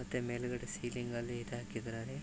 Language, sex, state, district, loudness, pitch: Kannada, male, Karnataka, Raichur, -41 LUFS, 120 Hz